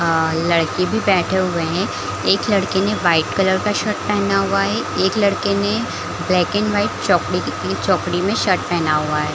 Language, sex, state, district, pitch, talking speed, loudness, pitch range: Hindi, female, Chhattisgarh, Bilaspur, 190 Hz, 185 wpm, -18 LUFS, 170-205 Hz